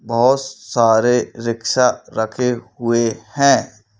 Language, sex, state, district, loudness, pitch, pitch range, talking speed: Hindi, male, Madhya Pradesh, Bhopal, -17 LUFS, 115 Hz, 110-125 Hz, 90 wpm